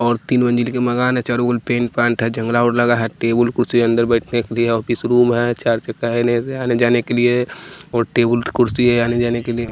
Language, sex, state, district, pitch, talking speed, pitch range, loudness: Hindi, male, Bihar, West Champaran, 120 Hz, 260 wpm, 115-120 Hz, -17 LUFS